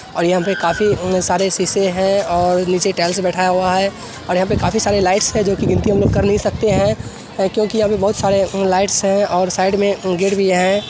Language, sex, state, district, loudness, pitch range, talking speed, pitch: Hindi, male, Bihar, Jamui, -16 LUFS, 185-200 Hz, 240 wpm, 190 Hz